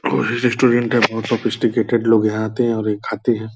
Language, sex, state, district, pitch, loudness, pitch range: Hindi, male, Bihar, Purnia, 115 Hz, -18 LUFS, 110-120 Hz